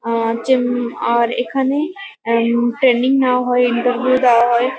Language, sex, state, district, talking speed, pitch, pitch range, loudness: Bengali, female, West Bengal, Kolkata, 140 wpm, 245 Hz, 235-260 Hz, -16 LUFS